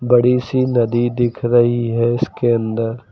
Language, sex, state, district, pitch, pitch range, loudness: Hindi, male, Uttar Pradesh, Lucknow, 120 Hz, 115-125 Hz, -17 LUFS